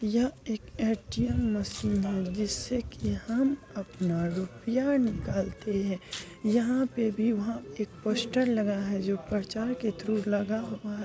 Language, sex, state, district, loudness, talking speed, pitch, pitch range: Hindi, male, Bihar, Bhagalpur, -30 LUFS, 145 wpm, 210 Hz, 190-230 Hz